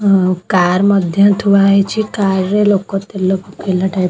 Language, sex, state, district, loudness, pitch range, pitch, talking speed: Odia, female, Odisha, Khordha, -13 LUFS, 185-200 Hz, 195 Hz, 190 wpm